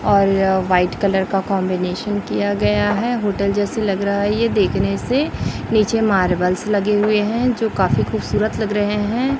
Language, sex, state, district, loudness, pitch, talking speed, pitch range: Hindi, female, Chhattisgarh, Raipur, -18 LUFS, 200 Hz, 170 wpm, 185-215 Hz